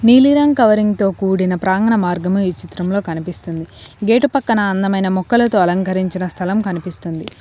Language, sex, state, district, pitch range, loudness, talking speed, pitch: Telugu, female, Telangana, Komaram Bheem, 180-220 Hz, -16 LUFS, 130 wpm, 190 Hz